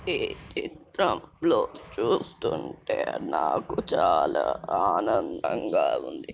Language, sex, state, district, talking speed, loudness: Telugu, male, Telangana, Nalgonda, 65 wpm, -27 LUFS